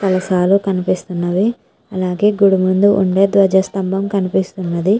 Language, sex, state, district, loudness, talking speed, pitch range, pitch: Telugu, female, Andhra Pradesh, Chittoor, -15 LUFS, 95 wpm, 185-200 Hz, 190 Hz